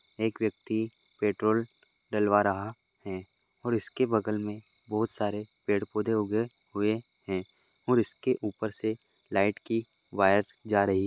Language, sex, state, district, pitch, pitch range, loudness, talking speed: Hindi, male, Goa, North and South Goa, 105 Hz, 100-115 Hz, -30 LUFS, 145 wpm